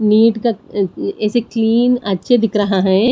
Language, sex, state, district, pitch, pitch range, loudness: Hindi, female, Punjab, Pathankot, 220 Hz, 200-235 Hz, -16 LUFS